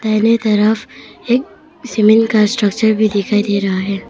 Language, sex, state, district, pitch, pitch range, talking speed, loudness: Hindi, female, Arunachal Pradesh, Papum Pare, 215 Hz, 205-225 Hz, 160 wpm, -14 LUFS